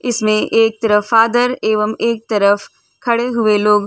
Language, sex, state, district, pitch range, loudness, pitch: Hindi, female, Uttar Pradesh, Varanasi, 210-235 Hz, -15 LUFS, 220 Hz